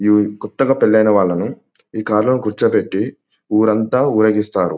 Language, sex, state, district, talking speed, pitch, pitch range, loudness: Telugu, male, Telangana, Nalgonda, 115 wpm, 110 Hz, 105-110 Hz, -16 LUFS